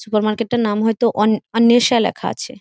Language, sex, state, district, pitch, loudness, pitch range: Bengali, female, West Bengal, Jhargram, 225 Hz, -17 LUFS, 215-235 Hz